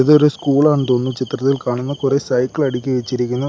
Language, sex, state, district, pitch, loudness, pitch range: Malayalam, male, Kerala, Kollam, 135 Hz, -17 LUFS, 125-140 Hz